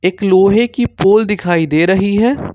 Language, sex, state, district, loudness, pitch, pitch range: Hindi, male, Jharkhand, Ranchi, -12 LUFS, 200 Hz, 185-220 Hz